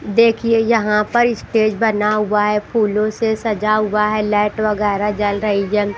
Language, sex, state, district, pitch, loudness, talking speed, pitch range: Hindi, female, Bihar, Katihar, 215 Hz, -17 LUFS, 170 wpm, 210-225 Hz